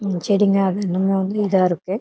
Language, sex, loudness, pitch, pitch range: Tamil, female, -19 LUFS, 195 Hz, 185-200 Hz